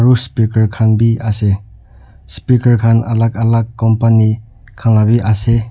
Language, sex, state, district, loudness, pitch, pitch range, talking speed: Nagamese, male, Nagaland, Dimapur, -13 LUFS, 115 Hz, 110-115 Hz, 160 wpm